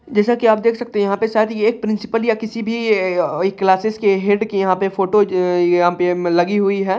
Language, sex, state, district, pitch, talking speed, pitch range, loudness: Hindi, male, Bihar, Saharsa, 205 Hz, 265 wpm, 190-220 Hz, -17 LUFS